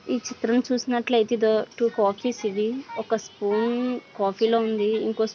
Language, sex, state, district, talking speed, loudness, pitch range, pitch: Telugu, female, Andhra Pradesh, Visakhapatnam, 110 wpm, -24 LUFS, 215-240 Hz, 225 Hz